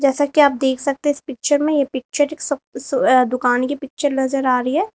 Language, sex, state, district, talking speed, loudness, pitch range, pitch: Hindi, female, Uttar Pradesh, Lalitpur, 255 wpm, -18 LUFS, 260-290 Hz, 275 Hz